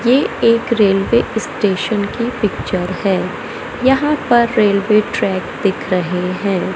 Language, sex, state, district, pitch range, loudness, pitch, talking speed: Hindi, male, Madhya Pradesh, Katni, 195-235 Hz, -16 LUFS, 215 Hz, 125 wpm